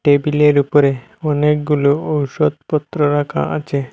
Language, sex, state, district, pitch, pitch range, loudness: Bengali, male, Assam, Hailakandi, 150 Hz, 145-150 Hz, -16 LUFS